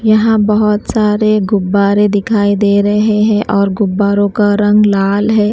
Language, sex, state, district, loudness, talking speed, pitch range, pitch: Hindi, female, Himachal Pradesh, Shimla, -12 LUFS, 150 wpm, 200-215 Hz, 210 Hz